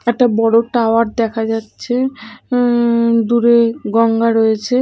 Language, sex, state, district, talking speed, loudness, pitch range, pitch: Bengali, female, Odisha, Malkangiri, 110 wpm, -15 LUFS, 225-240 Hz, 230 Hz